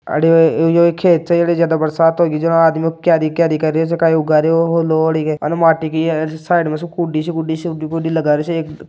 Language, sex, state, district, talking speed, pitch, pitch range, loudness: Marwari, male, Rajasthan, Nagaur, 195 wpm, 165 Hz, 160-165 Hz, -15 LUFS